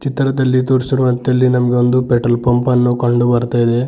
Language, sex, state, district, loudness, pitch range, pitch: Kannada, male, Karnataka, Bidar, -14 LUFS, 120-130 Hz, 125 Hz